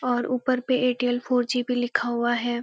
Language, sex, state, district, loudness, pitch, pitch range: Hindi, female, Uttarakhand, Uttarkashi, -24 LUFS, 245 Hz, 240-250 Hz